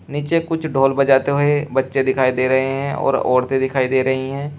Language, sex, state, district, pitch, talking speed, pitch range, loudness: Hindi, male, Uttar Pradesh, Shamli, 135 Hz, 210 wpm, 130-145 Hz, -18 LUFS